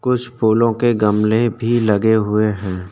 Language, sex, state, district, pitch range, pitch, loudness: Hindi, male, Uttarakhand, Tehri Garhwal, 105-120 Hz, 110 Hz, -16 LUFS